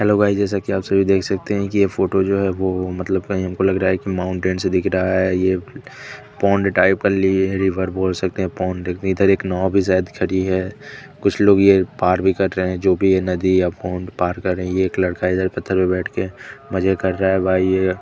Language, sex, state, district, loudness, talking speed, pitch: Hindi, male, Chandigarh, Chandigarh, -19 LUFS, 245 wpm, 95 Hz